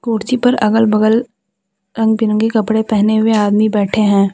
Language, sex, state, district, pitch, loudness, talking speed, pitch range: Hindi, female, Jharkhand, Deoghar, 220 Hz, -14 LUFS, 165 wpm, 205-225 Hz